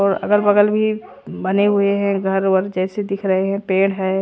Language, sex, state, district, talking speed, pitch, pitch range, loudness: Hindi, female, Haryana, Rohtak, 200 wpm, 195 Hz, 190-205 Hz, -18 LUFS